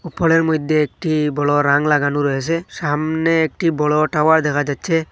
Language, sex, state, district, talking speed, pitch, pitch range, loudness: Bengali, male, Assam, Hailakandi, 150 wpm, 155 Hz, 145-160 Hz, -17 LUFS